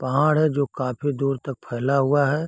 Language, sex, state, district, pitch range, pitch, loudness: Hindi, male, Bihar, East Champaran, 135-145 Hz, 140 Hz, -22 LUFS